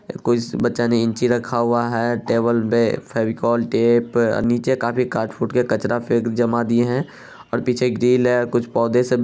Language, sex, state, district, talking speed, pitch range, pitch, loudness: Hindi, male, Bihar, Araria, 190 wpm, 115-120 Hz, 120 Hz, -19 LUFS